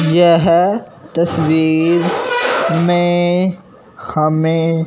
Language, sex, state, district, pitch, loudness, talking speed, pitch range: Hindi, male, Punjab, Fazilka, 170 Hz, -14 LUFS, 50 wpm, 160-175 Hz